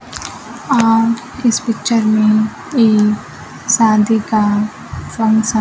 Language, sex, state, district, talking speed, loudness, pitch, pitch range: Hindi, female, Bihar, Kaimur, 95 wpm, -14 LUFS, 220 Hz, 215-230 Hz